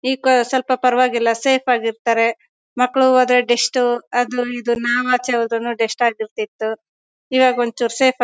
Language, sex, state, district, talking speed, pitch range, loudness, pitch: Kannada, female, Karnataka, Bellary, 145 wpm, 230-255 Hz, -17 LUFS, 245 Hz